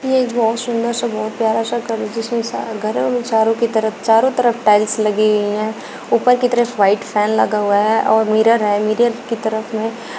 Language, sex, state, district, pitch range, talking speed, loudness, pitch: Hindi, female, Uttar Pradesh, Shamli, 215-235 Hz, 220 wpm, -16 LUFS, 225 Hz